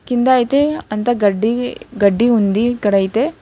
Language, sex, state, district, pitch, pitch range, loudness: Telugu, female, Telangana, Hyderabad, 240 Hz, 210-250 Hz, -16 LUFS